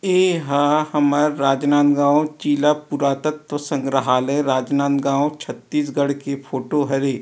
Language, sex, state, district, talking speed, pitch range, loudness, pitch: Chhattisgarhi, male, Chhattisgarh, Rajnandgaon, 100 wpm, 140-150 Hz, -19 LUFS, 145 Hz